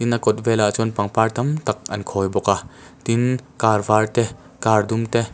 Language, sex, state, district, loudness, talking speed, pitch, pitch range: Mizo, male, Mizoram, Aizawl, -20 LUFS, 190 wpm, 110 Hz, 105-120 Hz